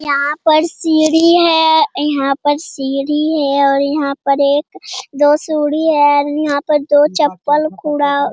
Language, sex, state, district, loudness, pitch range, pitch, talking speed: Hindi, male, Bihar, Jamui, -14 LUFS, 280-310 Hz, 295 Hz, 145 wpm